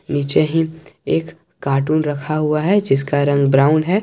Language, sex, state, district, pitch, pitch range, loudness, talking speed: Hindi, male, Jharkhand, Garhwa, 155 Hz, 145-165 Hz, -17 LUFS, 165 wpm